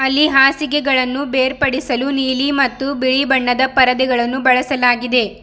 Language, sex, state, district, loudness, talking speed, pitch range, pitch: Kannada, female, Karnataka, Bidar, -15 LUFS, 100 wpm, 255-275 Hz, 265 Hz